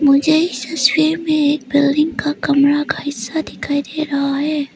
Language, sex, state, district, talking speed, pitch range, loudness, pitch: Hindi, female, Arunachal Pradesh, Papum Pare, 175 wpm, 280-310 Hz, -17 LUFS, 290 Hz